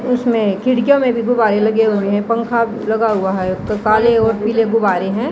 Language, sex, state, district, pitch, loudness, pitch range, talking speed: Hindi, female, Haryana, Jhajjar, 225 Hz, -15 LUFS, 210-235 Hz, 190 wpm